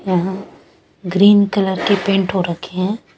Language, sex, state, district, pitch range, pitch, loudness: Hindi, female, Chandigarh, Chandigarh, 185-200 Hz, 190 Hz, -16 LUFS